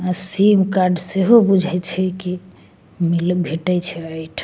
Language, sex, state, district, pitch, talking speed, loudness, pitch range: Maithili, female, Bihar, Begusarai, 180 Hz, 150 wpm, -17 LUFS, 175-190 Hz